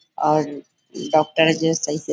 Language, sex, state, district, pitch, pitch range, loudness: Hindi, female, Bihar, Bhagalpur, 155 Hz, 150-160 Hz, -20 LUFS